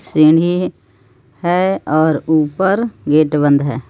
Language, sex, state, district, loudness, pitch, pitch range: Hindi, female, Jharkhand, Palamu, -15 LUFS, 155 Hz, 140-175 Hz